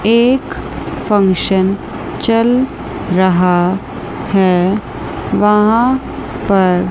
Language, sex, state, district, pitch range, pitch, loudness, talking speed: Hindi, female, Chandigarh, Chandigarh, 185-230 Hz, 195 Hz, -14 LUFS, 60 wpm